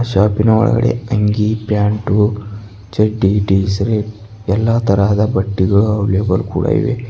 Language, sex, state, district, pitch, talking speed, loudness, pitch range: Kannada, male, Karnataka, Bidar, 105 Hz, 110 wpm, -15 LUFS, 100-110 Hz